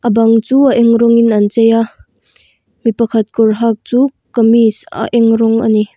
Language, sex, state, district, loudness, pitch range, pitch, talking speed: Mizo, female, Mizoram, Aizawl, -11 LUFS, 225-235 Hz, 230 Hz, 180 wpm